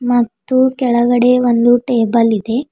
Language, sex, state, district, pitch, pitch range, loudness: Kannada, female, Karnataka, Bidar, 245 Hz, 235-250 Hz, -13 LUFS